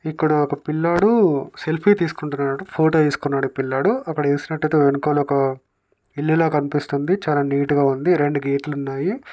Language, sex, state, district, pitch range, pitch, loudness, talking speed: Telugu, male, Telangana, Nalgonda, 140-160 Hz, 145 Hz, -20 LUFS, 150 wpm